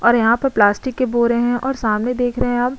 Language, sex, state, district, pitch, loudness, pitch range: Hindi, female, Uttar Pradesh, Budaun, 240 Hz, -17 LUFS, 235-250 Hz